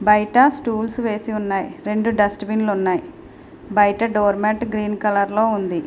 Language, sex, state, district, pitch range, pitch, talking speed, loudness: Telugu, female, Andhra Pradesh, Srikakulam, 205-220 Hz, 210 Hz, 165 wpm, -19 LUFS